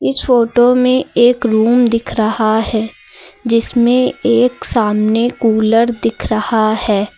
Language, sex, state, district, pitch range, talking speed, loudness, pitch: Hindi, female, Uttar Pradesh, Lucknow, 220-245 Hz, 125 wpm, -13 LUFS, 230 Hz